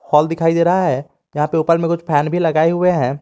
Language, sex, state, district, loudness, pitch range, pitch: Hindi, male, Jharkhand, Garhwa, -16 LUFS, 150-170 Hz, 165 Hz